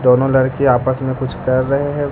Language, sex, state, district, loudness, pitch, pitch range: Hindi, male, Bihar, Katihar, -16 LUFS, 130 Hz, 130-135 Hz